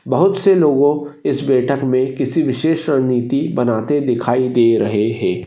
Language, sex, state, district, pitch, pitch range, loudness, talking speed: Hindi, male, Maharashtra, Solapur, 135 Hz, 120-145 Hz, -16 LUFS, 155 wpm